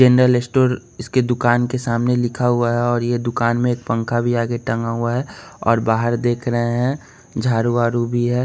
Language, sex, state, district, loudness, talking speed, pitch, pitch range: Hindi, male, Bihar, West Champaran, -19 LUFS, 205 wpm, 120 Hz, 120-125 Hz